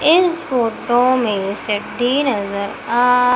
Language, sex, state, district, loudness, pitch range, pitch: Hindi, female, Madhya Pradesh, Umaria, -17 LUFS, 210-255 Hz, 245 Hz